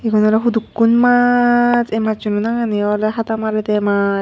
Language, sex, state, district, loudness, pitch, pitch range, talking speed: Chakma, female, Tripura, Unakoti, -16 LUFS, 220 Hz, 210-235 Hz, 155 wpm